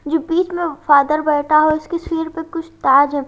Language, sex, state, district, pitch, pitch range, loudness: Hindi, female, Haryana, Jhajjar, 310 Hz, 295-330 Hz, -17 LUFS